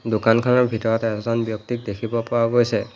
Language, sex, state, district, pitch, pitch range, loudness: Assamese, male, Assam, Hailakandi, 115 Hz, 115-120 Hz, -21 LUFS